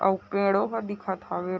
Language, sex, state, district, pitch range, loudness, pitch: Chhattisgarhi, female, Chhattisgarh, Raigarh, 190-205 Hz, -27 LUFS, 195 Hz